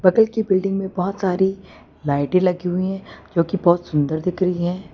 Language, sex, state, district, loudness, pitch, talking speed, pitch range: Hindi, female, Gujarat, Valsad, -20 LUFS, 185 Hz, 205 wpm, 175-195 Hz